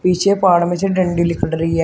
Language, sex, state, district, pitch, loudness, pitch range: Hindi, male, Uttar Pradesh, Shamli, 175 Hz, -16 LUFS, 170-185 Hz